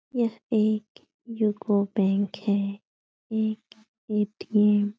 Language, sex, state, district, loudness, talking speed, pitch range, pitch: Hindi, female, Bihar, Supaul, -26 LUFS, 95 wpm, 205-220 Hz, 215 Hz